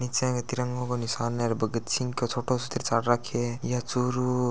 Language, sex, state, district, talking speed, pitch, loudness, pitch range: Hindi, male, Rajasthan, Churu, 200 wpm, 125 Hz, -28 LUFS, 120-125 Hz